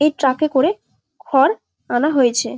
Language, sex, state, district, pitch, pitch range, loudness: Bengali, female, West Bengal, Jalpaiguri, 280 Hz, 260-305 Hz, -17 LUFS